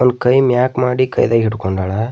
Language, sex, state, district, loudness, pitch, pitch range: Kannada, male, Karnataka, Bidar, -15 LUFS, 125 Hz, 110-125 Hz